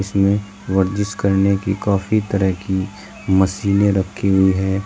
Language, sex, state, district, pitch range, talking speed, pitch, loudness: Hindi, male, Uttar Pradesh, Shamli, 95-100 Hz, 135 wpm, 95 Hz, -18 LUFS